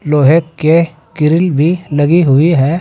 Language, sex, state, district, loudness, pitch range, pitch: Hindi, male, Uttar Pradesh, Saharanpur, -11 LUFS, 150-170 Hz, 160 Hz